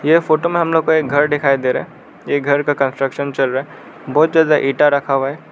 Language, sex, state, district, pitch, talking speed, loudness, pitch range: Hindi, male, Arunachal Pradesh, Lower Dibang Valley, 145 Hz, 270 wpm, -16 LUFS, 135-155 Hz